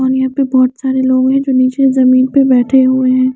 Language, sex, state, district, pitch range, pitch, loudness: Hindi, female, Chandigarh, Chandigarh, 255-265 Hz, 260 Hz, -11 LUFS